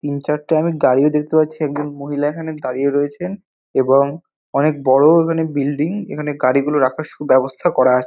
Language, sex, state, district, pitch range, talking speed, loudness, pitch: Bengali, male, West Bengal, North 24 Parganas, 140-155 Hz, 170 wpm, -17 LUFS, 145 Hz